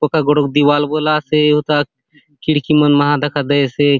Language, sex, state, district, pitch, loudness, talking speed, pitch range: Halbi, male, Chhattisgarh, Bastar, 145 Hz, -14 LUFS, 180 wpm, 145-150 Hz